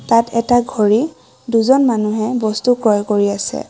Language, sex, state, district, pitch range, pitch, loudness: Assamese, female, Assam, Kamrup Metropolitan, 215-245 Hz, 225 Hz, -16 LUFS